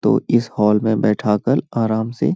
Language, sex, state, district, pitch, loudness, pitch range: Hindi, male, Uttar Pradesh, Hamirpur, 110 Hz, -18 LUFS, 105-120 Hz